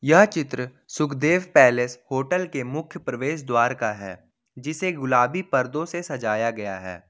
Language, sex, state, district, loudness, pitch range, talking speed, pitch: Hindi, male, Jharkhand, Ranchi, -23 LUFS, 120-160 Hz, 150 wpm, 130 Hz